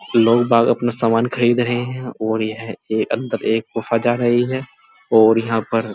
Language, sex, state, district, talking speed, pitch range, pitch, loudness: Hindi, male, Uttar Pradesh, Muzaffarnagar, 200 wpm, 115-120 Hz, 115 Hz, -18 LUFS